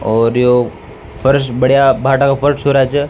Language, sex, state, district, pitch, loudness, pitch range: Rajasthani, male, Rajasthan, Nagaur, 135 Hz, -12 LUFS, 120-140 Hz